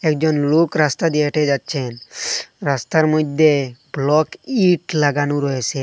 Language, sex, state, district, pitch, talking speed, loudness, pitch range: Bengali, male, Assam, Hailakandi, 150 Hz, 125 wpm, -18 LUFS, 140-155 Hz